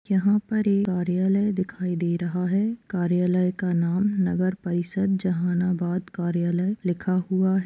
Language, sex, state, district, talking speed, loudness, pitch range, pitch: Hindi, female, Bihar, Gaya, 140 wpm, -24 LUFS, 180-195 Hz, 185 Hz